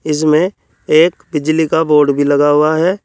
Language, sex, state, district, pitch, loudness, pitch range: Hindi, male, Uttar Pradesh, Saharanpur, 155 Hz, -13 LUFS, 150-160 Hz